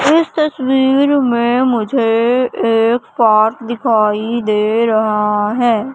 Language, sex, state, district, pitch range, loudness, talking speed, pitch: Hindi, female, Madhya Pradesh, Katni, 220-260 Hz, -14 LUFS, 100 wpm, 235 Hz